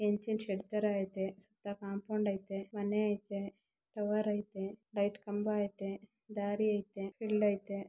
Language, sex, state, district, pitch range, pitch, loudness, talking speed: Kannada, female, Karnataka, Bijapur, 200-210 Hz, 205 Hz, -37 LUFS, 135 wpm